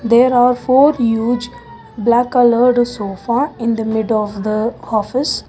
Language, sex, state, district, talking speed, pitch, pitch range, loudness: English, female, Karnataka, Bangalore, 140 wpm, 235 Hz, 225-245 Hz, -15 LUFS